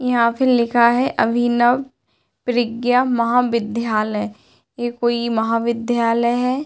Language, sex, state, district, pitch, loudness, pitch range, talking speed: Hindi, female, Uttar Pradesh, Hamirpur, 240 Hz, -18 LUFS, 230-245 Hz, 110 wpm